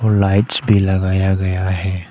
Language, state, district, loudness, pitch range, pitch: Hindi, Arunachal Pradesh, Papum Pare, -16 LUFS, 95-100 Hz, 95 Hz